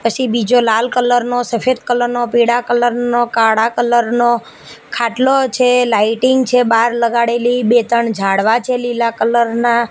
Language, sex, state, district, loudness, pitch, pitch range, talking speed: Gujarati, female, Gujarat, Gandhinagar, -14 LUFS, 240 Hz, 230-245 Hz, 165 wpm